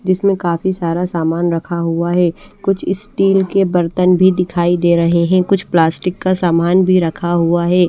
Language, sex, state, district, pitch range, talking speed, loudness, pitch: Hindi, female, Odisha, Malkangiri, 170-185 Hz, 180 wpm, -15 LUFS, 180 Hz